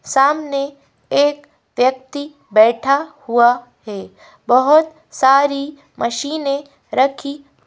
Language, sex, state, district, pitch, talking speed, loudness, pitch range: Hindi, female, Madhya Pradesh, Bhopal, 280 Hz, 80 wpm, -16 LUFS, 255-290 Hz